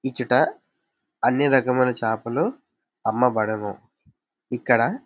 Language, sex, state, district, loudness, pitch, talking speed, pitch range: Telugu, male, Andhra Pradesh, Visakhapatnam, -22 LUFS, 125 Hz, 70 wpm, 110-130 Hz